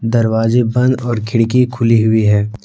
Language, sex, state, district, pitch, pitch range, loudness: Hindi, male, Jharkhand, Deoghar, 115 Hz, 110-120 Hz, -14 LUFS